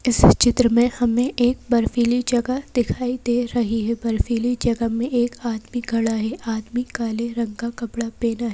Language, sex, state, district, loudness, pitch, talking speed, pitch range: Hindi, female, Madhya Pradesh, Bhopal, -21 LUFS, 235 Hz, 175 wpm, 230-245 Hz